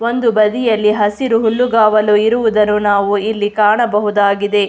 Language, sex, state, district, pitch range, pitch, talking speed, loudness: Kannada, female, Karnataka, Mysore, 205-225 Hz, 210 Hz, 115 wpm, -13 LUFS